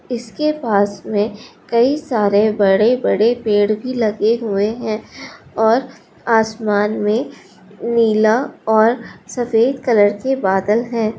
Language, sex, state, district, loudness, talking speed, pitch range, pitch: Hindi, male, Bihar, Supaul, -17 LUFS, 125 wpm, 210-235 Hz, 220 Hz